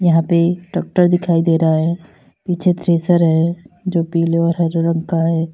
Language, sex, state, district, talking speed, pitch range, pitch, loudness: Hindi, female, Uttar Pradesh, Lalitpur, 185 wpm, 165-175 Hz, 170 Hz, -16 LUFS